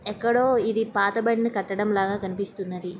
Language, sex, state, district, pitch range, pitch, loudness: Telugu, female, Andhra Pradesh, Srikakulam, 195-230 Hz, 205 Hz, -24 LUFS